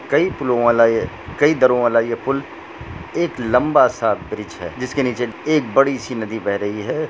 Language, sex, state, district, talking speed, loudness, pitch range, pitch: Hindi, male, Jharkhand, Jamtara, 135 wpm, -18 LUFS, 115-140 Hz, 125 Hz